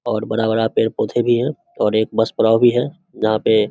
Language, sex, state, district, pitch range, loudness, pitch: Hindi, male, Bihar, Samastipur, 110-120 Hz, -18 LUFS, 115 Hz